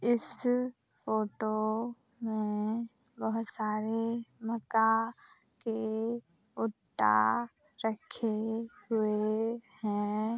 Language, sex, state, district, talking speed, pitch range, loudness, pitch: Hindi, female, Uttar Pradesh, Hamirpur, 65 wpm, 215-230 Hz, -33 LUFS, 225 Hz